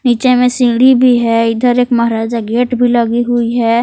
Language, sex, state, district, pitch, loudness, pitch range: Hindi, female, Jharkhand, Palamu, 240 Hz, -11 LUFS, 235-250 Hz